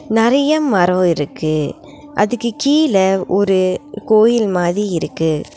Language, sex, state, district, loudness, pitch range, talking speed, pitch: Tamil, female, Tamil Nadu, Nilgiris, -15 LUFS, 180-245 Hz, 95 wpm, 205 Hz